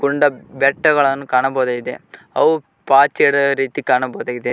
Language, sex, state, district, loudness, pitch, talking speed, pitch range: Kannada, male, Karnataka, Koppal, -16 LUFS, 135 Hz, 105 wpm, 130-140 Hz